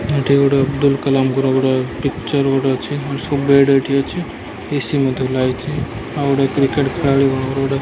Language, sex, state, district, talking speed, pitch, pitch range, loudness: Odia, male, Odisha, Malkangiri, 160 wpm, 135 Hz, 135-140 Hz, -17 LUFS